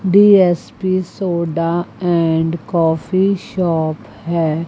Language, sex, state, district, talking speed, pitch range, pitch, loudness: Hindi, female, Chandigarh, Chandigarh, 75 wpm, 165-185 Hz, 170 Hz, -16 LUFS